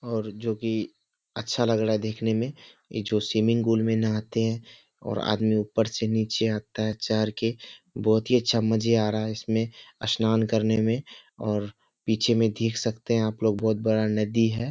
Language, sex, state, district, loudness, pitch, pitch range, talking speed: Hindi, male, Bihar, Kishanganj, -26 LUFS, 110 Hz, 110-115 Hz, 190 wpm